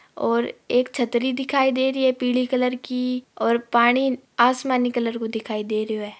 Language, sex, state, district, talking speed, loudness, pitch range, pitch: Marwari, female, Rajasthan, Nagaur, 185 wpm, -22 LUFS, 235-260 Hz, 250 Hz